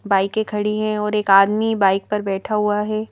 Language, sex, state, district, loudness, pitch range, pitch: Hindi, female, Madhya Pradesh, Bhopal, -19 LUFS, 195-215 Hz, 210 Hz